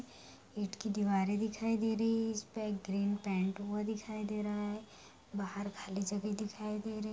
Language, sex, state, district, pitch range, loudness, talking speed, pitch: Hindi, female, Jharkhand, Sahebganj, 200-215 Hz, -37 LUFS, 195 wpm, 210 Hz